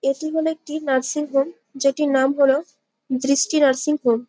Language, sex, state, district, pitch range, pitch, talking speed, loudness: Bengali, female, West Bengal, Malda, 265-300 Hz, 275 Hz, 180 wpm, -20 LUFS